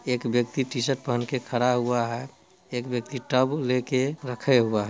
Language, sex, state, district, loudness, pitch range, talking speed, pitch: Hindi, male, Bihar, Muzaffarpur, -26 LUFS, 120-130 Hz, 185 wpm, 125 Hz